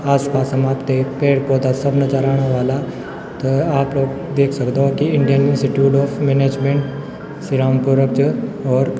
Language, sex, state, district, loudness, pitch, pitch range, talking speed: Garhwali, male, Uttarakhand, Tehri Garhwal, -17 LUFS, 135 Hz, 135-140 Hz, 145 wpm